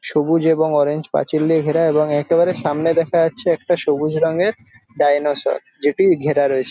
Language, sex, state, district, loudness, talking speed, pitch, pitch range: Bengali, male, West Bengal, Jhargram, -17 LUFS, 160 wpm, 155 Hz, 145-165 Hz